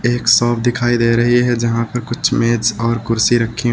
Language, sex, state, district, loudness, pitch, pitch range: Hindi, male, Uttar Pradesh, Lucknow, -15 LUFS, 120 Hz, 115-120 Hz